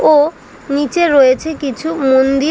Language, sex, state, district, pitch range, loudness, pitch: Bengali, female, West Bengal, Dakshin Dinajpur, 270-315 Hz, -13 LUFS, 290 Hz